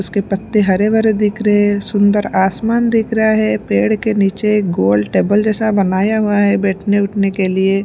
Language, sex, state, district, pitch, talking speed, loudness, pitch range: Hindi, female, Punjab, Pathankot, 205 Hz, 200 wpm, -14 LUFS, 195-215 Hz